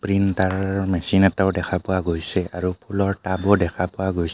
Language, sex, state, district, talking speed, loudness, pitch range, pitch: Assamese, male, Assam, Kamrup Metropolitan, 180 wpm, -21 LUFS, 90-95 Hz, 95 Hz